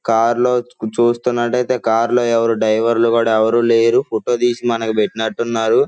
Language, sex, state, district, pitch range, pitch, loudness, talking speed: Telugu, male, Andhra Pradesh, Guntur, 115-120 Hz, 115 Hz, -16 LUFS, 135 wpm